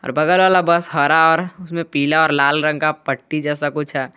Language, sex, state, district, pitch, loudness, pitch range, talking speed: Hindi, male, Jharkhand, Garhwa, 155 Hz, -17 LUFS, 145-170 Hz, 215 wpm